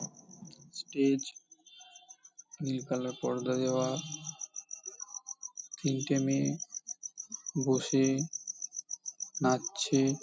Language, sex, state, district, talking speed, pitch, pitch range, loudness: Bengali, male, West Bengal, Paschim Medinipur, 65 wpm, 150 Hz, 135-215 Hz, -33 LUFS